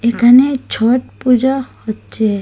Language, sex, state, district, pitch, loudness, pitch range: Bengali, female, Assam, Hailakandi, 245 Hz, -13 LUFS, 225-255 Hz